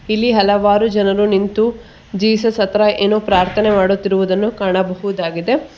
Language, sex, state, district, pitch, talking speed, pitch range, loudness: Kannada, female, Karnataka, Bangalore, 205 Hz, 105 wpm, 195-215 Hz, -15 LUFS